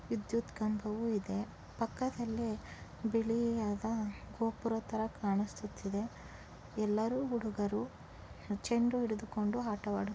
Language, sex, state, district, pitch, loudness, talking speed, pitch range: Kannada, female, Karnataka, Chamarajanagar, 220 Hz, -37 LUFS, 75 wpm, 205-230 Hz